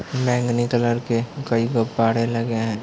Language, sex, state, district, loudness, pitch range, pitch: Hindi, male, Uttar Pradesh, Gorakhpur, -21 LUFS, 115-120 Hz, 115 Hz